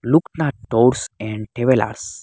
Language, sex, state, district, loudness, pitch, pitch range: Bengali, male, Assam, Hailakandi, -19 LUFS, 120 Hz, 110-130 Hz